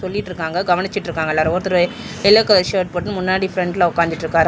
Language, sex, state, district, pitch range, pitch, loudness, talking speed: Tamil, male, Tamil Nadu, Chennai, 170-190 Hz, 180 Hz, -17 LUFS, 145 wpm